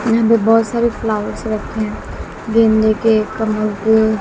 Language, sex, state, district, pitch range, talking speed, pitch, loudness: Hindi, female, Bihar, West Champaran, 215-225 Hz, 155 wpm, 220 Hz, -16 LUFS